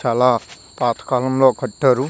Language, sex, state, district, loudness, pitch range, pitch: Telugu, male, Andhra Pradesh, Visakhapatnam, -18 LUFS, 125-130 Hz, 130 Hz